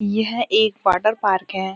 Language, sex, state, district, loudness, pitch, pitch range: Hindi, female, Uttarakhand, Uttarkashi, -19 LUFS, 210 Hz, 190-225 Hz